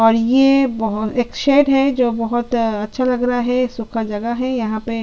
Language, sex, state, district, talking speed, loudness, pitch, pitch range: Hindi, female, Chhattisgarh, Sukma, 215 wpm, -17 LUFS, 240 Hz, 225-255 Hz